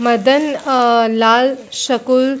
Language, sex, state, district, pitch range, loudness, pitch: Hindi, female, Chhattisgarh, Bilaspur, 235-265 Hz, -14 LUFS, 255 Hz